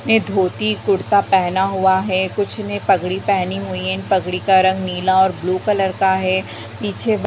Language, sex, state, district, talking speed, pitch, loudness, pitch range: Hindi, female, Jharkhand, Jamtara, 200 wpm, 190 Hz, -18 LUFS, 185-200 Hz